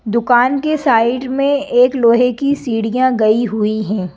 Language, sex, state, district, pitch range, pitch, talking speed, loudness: Hindi, female, Madhya Pradesh, Bhopal, 225-265 Hz, 245 Hz, 160 wpm, -14 LUFS